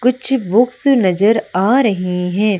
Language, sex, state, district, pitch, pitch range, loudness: Hindi, female, Madhya Pradesh, Umaria, 220 Hz, 190-250 Hz, -15 LUFS